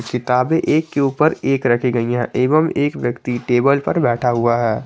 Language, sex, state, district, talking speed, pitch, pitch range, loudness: Hindi, male, Jharkhand, Garhwa, 200 wpm, 125 Hz, 120-145 Hz, -17 LUFS